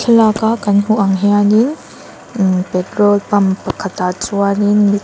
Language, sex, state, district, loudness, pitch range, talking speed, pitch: Mizo, female, Mizoram, Aizawl, -14 LUFS, 195-215 Hz, 155 wpm, 205 Hz